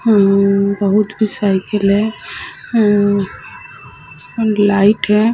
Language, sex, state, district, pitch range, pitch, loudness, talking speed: Hindi, female, Chhattisgarh, Sukma, 195-210 Hz, 205 Hz, -14 LUFS, 100 wpm